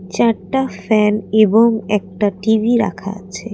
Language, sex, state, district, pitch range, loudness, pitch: Bengali, female, Assam, Kamrup Metropolitan, 195-225 Hz, -16 LUFS, 210 Hz